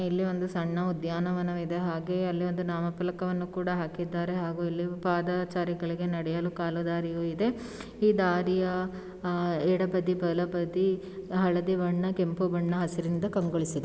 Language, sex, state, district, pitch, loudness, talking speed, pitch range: Kannada, female, Karnataka, Shimoga, 180 Hz, -30 LUFS, 125 wpm, 170-185 Hz